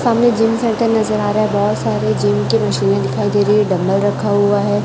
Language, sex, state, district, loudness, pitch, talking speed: Hindi, male, Chhattisgarh, Raipur, -15 LUFS, 205 Hz, 245 wpm